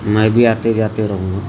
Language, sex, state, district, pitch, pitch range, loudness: Hindi, male, Maharashtra, Gondia, 110 Hz, 105-115 Hz, -15 LUFS